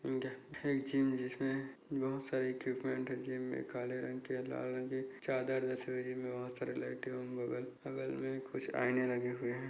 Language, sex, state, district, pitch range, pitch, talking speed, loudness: Hindi, male, Chhattisgarh, Bastar, 125-130 Hz, 130 Hz, 200 wpm, -39 LUFS